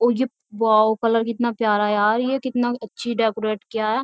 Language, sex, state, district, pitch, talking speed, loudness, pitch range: Hindi, female, Uttar Pradesh, Jyotiba Phule Nagar, 230 Hz, 190 wpm, -21 LUFS, 215-240 Hz